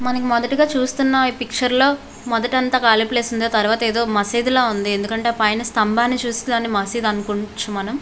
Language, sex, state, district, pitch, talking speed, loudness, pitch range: Telugu, female, Andhra Pradesh, Visakhapatnam, 235 Hz, 150 wpm, -18 LUFS, 220-250 Hz